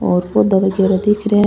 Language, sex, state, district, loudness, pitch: Rajasthani, female, Rajasthan, Churu, -15 LUFS, 195 Hz